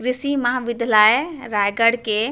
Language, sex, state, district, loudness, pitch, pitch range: Chhattisgarhi, female, Chhattisgarh, Raigarh, -18 LUFS, 235 Hz, 220-255 Hz